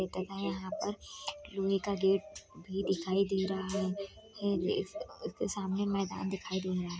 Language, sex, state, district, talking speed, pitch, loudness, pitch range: Hindi, female, Bihar, Saharsa, 155 wpm, 195 Hz, -35 LUFS, 190-200 Hz